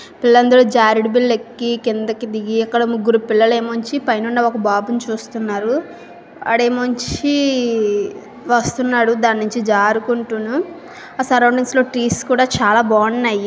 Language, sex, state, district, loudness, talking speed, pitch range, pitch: Telugu, female, Andhra Pradesh, Visakhapatnam, -16 LUFS, 90 wpm, 225-245 Hz, 235 Hz